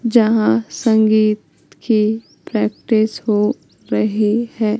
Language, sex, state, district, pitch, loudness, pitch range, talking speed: Hindi, female, Madhya Pradesh, Katni, 215 Hz, -17 LUFS, 210-225 Hz, 85 wpm